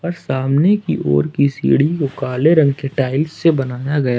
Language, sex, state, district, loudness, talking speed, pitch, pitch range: Hindi, male, Jharkhand, Ranchi, -16 LUFS, 185 wpm, 140 Hz, 130-160 Hz